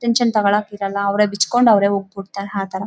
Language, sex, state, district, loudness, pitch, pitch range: Kannada, female, Karnataka, Raichur, -17 LUFS, 200 Hz, 200-210 Hz